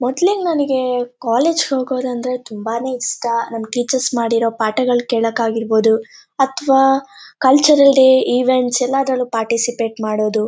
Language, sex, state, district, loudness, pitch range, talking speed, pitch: Kannada, female, Karnataka, Shimoga, -16 LUFS, 230-265 Hz, 110 wpm, 245 Hz